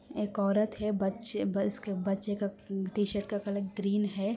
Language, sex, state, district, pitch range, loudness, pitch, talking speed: Hindi, female, Andhra Pradesh, Anantapur, 195-210 Hz, -32 LUFS, 200 Hz, 150 wpm